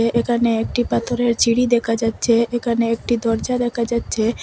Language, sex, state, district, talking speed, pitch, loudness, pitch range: Bengali, female, Assam, Hailakandi, 150 wpm, 235 Hz, -19 LUFS, 230-240 Hz